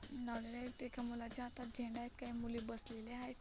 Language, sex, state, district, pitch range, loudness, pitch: Marathi, female, Maharashtra, Solapur, 235-250 Hz, -45 LUFS, 240 Hz